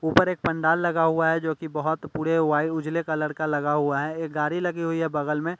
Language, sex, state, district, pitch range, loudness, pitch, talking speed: Hindi, male, Delhi, New Delhi, 150-165 Hz, -25 LUFS, 160 Hz, 255 wpm